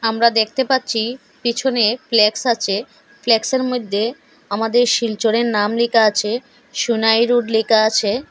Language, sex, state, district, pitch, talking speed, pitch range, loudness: Bengali, female, Assam, Hailakandi, 230 Hz, 125 wpm, 220-245 Hz, -17 LUFS